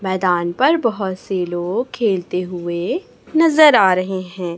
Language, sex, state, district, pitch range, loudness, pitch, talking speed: Hindi, female, Chhattisgarh, Raipur, 175-210 Hz, -17 LUFS, 185 Hz, 145 wpm